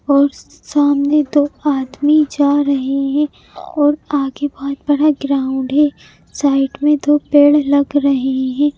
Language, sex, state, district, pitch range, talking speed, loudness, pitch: Hindi, male, Madhya Pradesh, Bhopal, 275-295 Hz, 135 wpm, -15 LUFS, 285 Hz